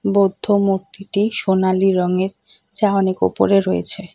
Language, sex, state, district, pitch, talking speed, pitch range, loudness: Bengali, female, West Bengal, Cooch Behar, 195 Hz, 115 wpm, 180-200 Hz, -18 LUFS